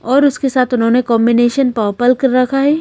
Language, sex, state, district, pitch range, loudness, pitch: Hindi, female, Madhya Pradesh, Bhopal, 240-270 Hz, -13 LUFS, 250 Hz